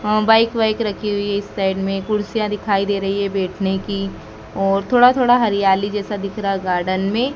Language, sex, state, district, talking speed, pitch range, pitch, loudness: Hindi, female, Madhya Pradesh, Dhar, 205 wpm, 195-215 Hz, 200 Hz, -18 LUFS